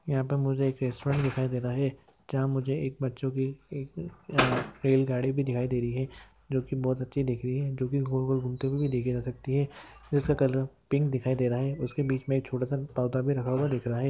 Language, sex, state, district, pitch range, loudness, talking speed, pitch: Hindi, male, Maharashtra, Sindhudurg, 130-140 Hz, -29 LUFS, 240 wpm, 135 Hz